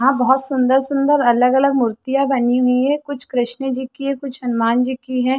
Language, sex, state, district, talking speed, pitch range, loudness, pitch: Hindi, female, Chhattisgarh, Bilaspur, 225 wpm, 250-275 Hz, -17 LUFS, 260 Hz